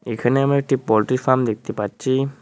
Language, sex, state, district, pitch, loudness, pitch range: Bengali, male, West Bengal, Cooch Behar, 130 Hz, -20 LUFS, 110-135 Hz